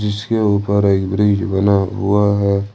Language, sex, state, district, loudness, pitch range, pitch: Hindi, male, Jharkhand, Ranchi, -16 LUFS, 100-105 Hz, 100 Hz